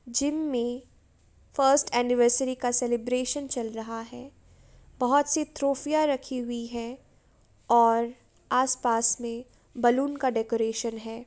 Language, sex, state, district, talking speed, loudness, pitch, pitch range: Hindi, female, Uttar Pradesh, Jalaun, 120 wpm, -26 LUFS, 245 Hz, 235-270 Hz